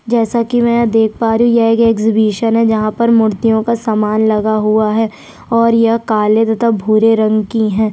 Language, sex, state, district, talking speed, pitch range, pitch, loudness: Hindi, female, Chhattisgarh, Sukma, 195 wpm, 215-230 Hz, 225 Hz, -13 LUFS